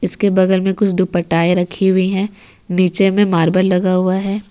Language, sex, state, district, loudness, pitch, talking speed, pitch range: Hindi, female, Jharkhand, Ranchi, -15 LUFS, 190 Hz, 185 wpm, 180-195 Hz